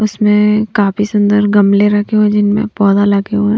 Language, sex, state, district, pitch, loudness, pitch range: Hindi, female, Haryana, Rohtak, 205 Hz, -12 LUFS, 205-210 Hz